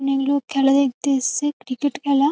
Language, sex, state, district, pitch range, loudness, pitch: Bengali, female, West Bengal, North 24 Parganas, 270-285 Hz, -20 LUFS, 275 Hz